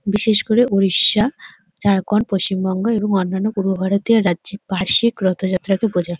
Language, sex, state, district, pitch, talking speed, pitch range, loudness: Bengali, female, West Bengal, North 24 Parganas, 200 Hz, 125 wpm, 190-215 Hz, -17 LUFS